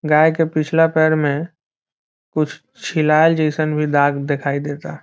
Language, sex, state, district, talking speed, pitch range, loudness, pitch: Bhojpuri, male, Bihar, Saran, 155 wpm, 145-160 Hz, -17 LUFS, 155 Hz